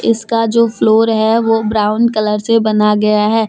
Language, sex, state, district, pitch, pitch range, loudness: Hindi, female, Jharkhand, Deoghar, 220 Hz, 210-230 Hz, -13 LUFS